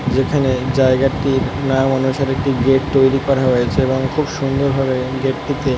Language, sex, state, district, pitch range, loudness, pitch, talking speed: Bengali, male, West Bengal, North 24 Parganas, 130-135 Hz, -16 LUFS, 135 Hz, 175 wpm